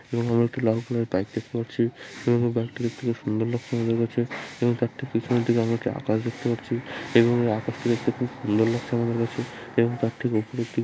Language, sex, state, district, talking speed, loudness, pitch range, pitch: Bengali, male, West Bengal, Malda, 225 wpm, -26 LUFS, 115-120 Hz, 120 Hz